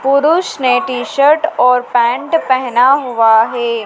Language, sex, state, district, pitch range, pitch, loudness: Hindi, female, Madhya Pradesh, Dhar, 240-285 Hz, 255 Hz, -12 LUFS